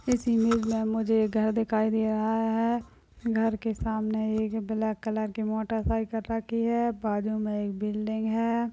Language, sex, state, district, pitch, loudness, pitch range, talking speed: Hindi, female, Chhattisgarh, Balrampur, 220 Hz, -28 LUFS, 220-225 Hz, 180 wpm